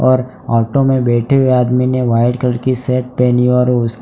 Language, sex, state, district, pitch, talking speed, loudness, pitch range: Hindi, male, Gujarat, Valsad, 125 Hz, 225 wpm, -14 LUFS, 120-130 Hz